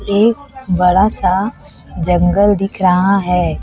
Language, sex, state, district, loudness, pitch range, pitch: Hindi, female, Chhattisgarh, Raipur, -14 LUFS, 180-205 Hz, 195 Hz